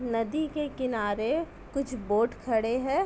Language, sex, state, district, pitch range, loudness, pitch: Hindi, female, Uttar Pradesh, Jyotiba Phule Nagar, 225-280 Hz, -29 LUFS, 245 Hz